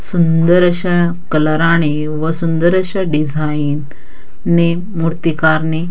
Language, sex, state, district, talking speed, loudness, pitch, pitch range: Marathi, female, Maharashtra, Dhule, 100 wpm, -15 LUFS, 165 Hz, 155-175 Hz